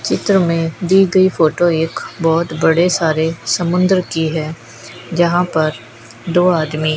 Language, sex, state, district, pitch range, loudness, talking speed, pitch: Hindi, female, Rajasthan, Bikaner, 155-175 Hz, -15 LUFS, 145 wpm, 165 Hz